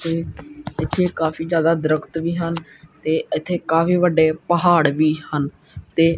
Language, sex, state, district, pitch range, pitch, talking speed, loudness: Punjabi, male, Punjab, Kapurthala, 155-170 Hz, 160 Hz, 135 wpm, -20 LUFS